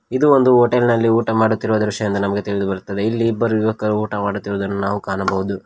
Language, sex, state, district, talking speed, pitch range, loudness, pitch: Kannada, male, Karnataka, Koppal, 190 wpm, 100-115 Hz, -18 LUFS, 105 Hz